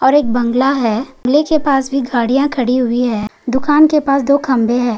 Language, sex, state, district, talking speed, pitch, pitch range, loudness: Hindi, female, Maharashtra, Chandrapur, 215 wpm, 260 Hz, 245-280 Hz, -14 LUFS